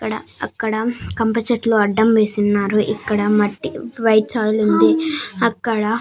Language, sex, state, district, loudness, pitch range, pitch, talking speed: Telugu, female, Andhra Pradesh, Annamaya, -17 LUFS, 205-225 Hz, 215 Hz, 130 wpm